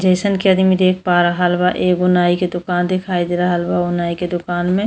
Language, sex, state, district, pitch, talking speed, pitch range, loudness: Bhojpuri, female, Uttar Pradesh, Deoria, 180 Hz, 260 wpm, 175-185 Hz, -16 LUFS